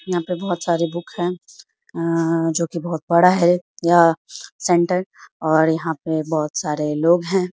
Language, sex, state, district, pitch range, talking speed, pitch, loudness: Hindi, female, Bihar, Samastipur, 160-175 Hz, 160 wpm, 170 Hz, -19 LUFS